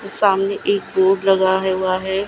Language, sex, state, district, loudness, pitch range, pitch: Hindi, female, Gujarat, Gandhinagar, -17 LUFS, 190-200 Hz, 190 Hz